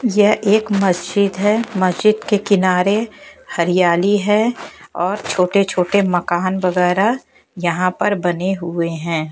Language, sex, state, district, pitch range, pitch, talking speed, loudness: Hindi, female, Bihar, West Champaran, 180-210 Hz, 195 Hz, 120 wpm, -17 LUFS